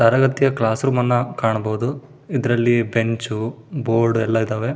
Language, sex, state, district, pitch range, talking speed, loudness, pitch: Kannada, male, Karnataka, Shimoga, 115-135 Hz, 125 wpm, -20 LUFS, 115 Hz